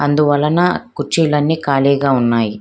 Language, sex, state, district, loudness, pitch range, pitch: Telugu, female, Andhra Pradesh, Krishna, -15 LUFS, 135-150 Hz, 145 Hz